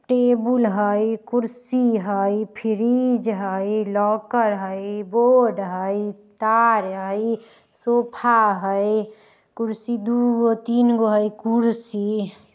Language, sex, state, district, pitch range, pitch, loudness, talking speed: Bajjika, female, Bihar, Vaishali, 205-235 Hz, 220 Hz, -21 LUFS, 90 wpm